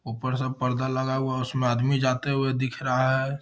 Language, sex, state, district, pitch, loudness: Hindi, male, Bihar, Gaya, 130 Hz, -26 LUFS